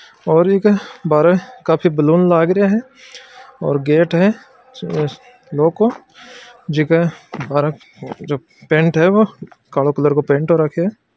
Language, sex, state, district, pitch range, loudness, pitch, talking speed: Marwari, male, Rajasthan, Nagaur, 155-215 Hz, -16 LUFS, 170 Hz, 120 wpm